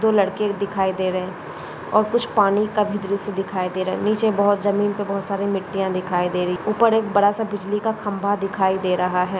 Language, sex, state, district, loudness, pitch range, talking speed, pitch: Hindi, female, Maharashtra, Sindhudurg, -21 LUFS, 190-210 Hz, 215 wpm, 200 Hz